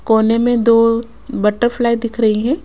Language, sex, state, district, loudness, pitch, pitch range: Hindi, female, Rajasthan, Jaipur, -15 LUFS, 230 Hz, 225-240 Hz